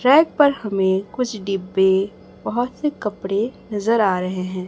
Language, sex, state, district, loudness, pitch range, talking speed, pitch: Hindi, male, Chhattisgarh, Raipur, -20 LUFS, 190-245 Hz, 155 wpm, 205 Hz